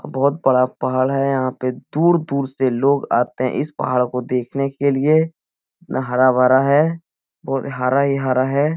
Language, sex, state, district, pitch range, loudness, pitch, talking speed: Hindi, male, Bihar, Jahanabad, 130-140 Hz, -18 LUFS, 135 Hz, 170 wpm